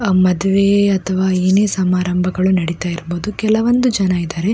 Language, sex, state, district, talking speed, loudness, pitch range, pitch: Kannada, female, Karnataka, Dakshina Kannada, 120 wpm, -16 LUFS, 180-200 Hz, 185 Hz